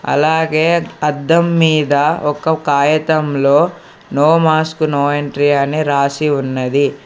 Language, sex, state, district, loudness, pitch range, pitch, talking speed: Telugu, male, Telangana, Hyderabad, -14 LUFS, 140-160 Hz, 150 Hz, 100 wpm